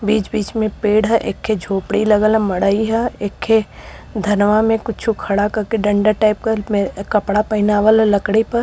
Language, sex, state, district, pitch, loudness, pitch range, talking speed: Hindi, female, Uttar Pradesh, Varanasi, 215 Hz, -17 LUFS, 205-220 Hz, 190 wpm